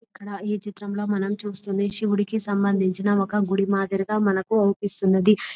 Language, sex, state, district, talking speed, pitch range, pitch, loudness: Telugu, female, Telangana, Nalgonda, 140 wpm, 195-205 Hz, 200 Hz, -23 LUFS